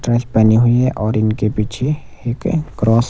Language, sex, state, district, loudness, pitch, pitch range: Hindi, male, Himachal Pradesh, Shimla, -16 LUFS, 115 Hz, 110-125 Hz